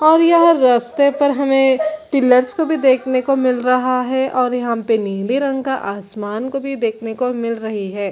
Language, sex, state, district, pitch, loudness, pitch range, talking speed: Hindi, female, Chhattisgarh, Bilaspur, 255 Hz, -16 LUFS, 230-275 Hz, 205 wpm